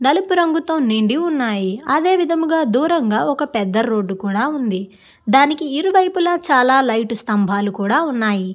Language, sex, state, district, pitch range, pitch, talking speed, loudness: Telugu, female, Andhra Pradesh, Guntur, 210-320 Hz, 260 Hz, 135 wpm, -17 LUFS